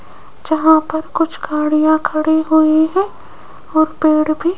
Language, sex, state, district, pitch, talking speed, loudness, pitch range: Hindi, female, Rajasthan, Jaipur, 315 Hz, 130 wpm, -15 LUFS, 310-315 Hz